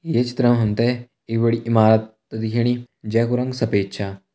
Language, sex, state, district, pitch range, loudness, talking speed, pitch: Hindi, male, Uttarakhand, Tehri Garhwal, 110-120 Hz, -20 LUFS, 165 wpm, 115 Hz